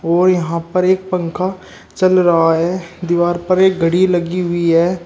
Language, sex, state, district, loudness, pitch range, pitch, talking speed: Hindi, male, Uttar Pradesh, Shamli, -15 LUFS, 170-185 Hz, 175 Hz, 180 wpm